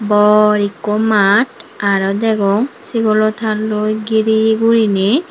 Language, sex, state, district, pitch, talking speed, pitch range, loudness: Chakma, female, Tripura, Unakoti, 215 Hz, 100 wpm, 210-220 Hz, -14 LUFS